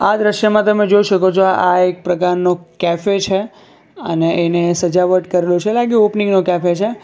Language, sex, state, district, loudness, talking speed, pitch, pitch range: Gujarati, male, Gujarat, Valsad, -15 LUFS, 180 wpm, 185 Hz, 175-210 Hz